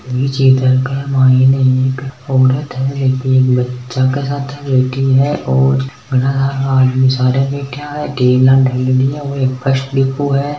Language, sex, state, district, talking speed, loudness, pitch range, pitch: Hindi, male, Rajasthan, Nagaur, 165 wpm, -14 LUFS, 130-135 Hz, 130 Hz